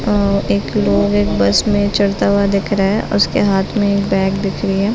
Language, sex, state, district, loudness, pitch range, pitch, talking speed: Hindi, female, Chhattisgarh, Bilaspur, -15 LUFS, 190-200 Hz, 200 Hz, 230 wpm